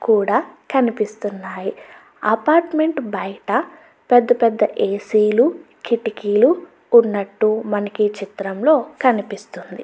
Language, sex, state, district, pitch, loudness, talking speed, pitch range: Telugu, female, Andhra Pradesh, Chittoor, 215 Hz, -18 LUFS, 85 wpm, 205-255 Hz